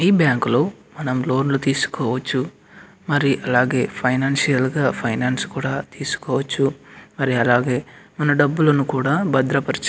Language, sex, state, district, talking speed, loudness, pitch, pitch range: Telugu, male, Andhra Pradesh, Anantapur, 115 wpm, -20 LUFS, 135 Hz, 130-145 Hz